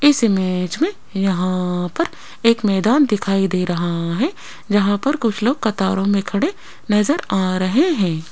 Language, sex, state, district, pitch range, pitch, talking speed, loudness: Hindi, female, Rajasthan, Jaipur, 185-240 Hz, 200 Hz, 160 wpm, -18 LUFS